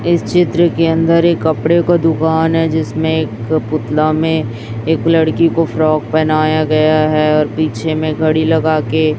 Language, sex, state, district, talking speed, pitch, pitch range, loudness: Hindi, female, Chhattisgarh, Raipur, 170 wpm, 155 Hz, 155-160 Hz, -14 LUFS